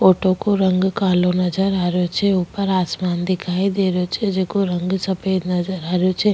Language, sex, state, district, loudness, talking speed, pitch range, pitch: Rajasthani, female, Rajasthan, Nagaur, -19 LUFS, 200 wpm, 180-195 Hz, 185 Hz